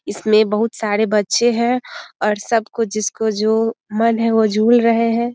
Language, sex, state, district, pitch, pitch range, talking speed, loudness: Hindi, female, Bihar, Muzaffarpur, 225 Hz, 215-230 Hz, 170 wpm, -17 LUFS